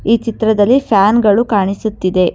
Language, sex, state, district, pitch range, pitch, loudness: Kannada, female, Karnataka, Bangalore, 200-230 Hz, 215 Hz, -13 LUFS